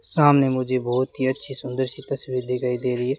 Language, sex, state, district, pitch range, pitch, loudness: Hindi, male, Rajasthan, Bikaner, 125-135 Hz, 130 Hz, -23 LUFS